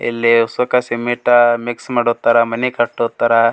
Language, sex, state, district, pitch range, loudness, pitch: Kannada, male, Karnataka, Gulbarga, 115-120 Hz, -15 LUFS, 120 Hz